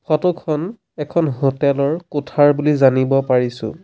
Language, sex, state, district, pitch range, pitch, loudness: Assamese, male, Assam, Sonitpur, 135-155 Hz, 145 Hz, -17 LUFS